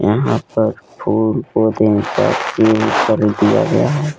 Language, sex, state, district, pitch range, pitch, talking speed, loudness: Hindi, male, Jharkhand, Deoghar, 105-110 Hz, 110 Hz, 85 wpm, -15 LUFS